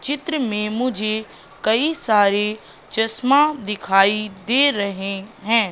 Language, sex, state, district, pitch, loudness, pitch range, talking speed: Hindi, female, Madhya Pradesh, Katni, 215 Hz, -20 LUFS, 205-255 Hz, 105 wpm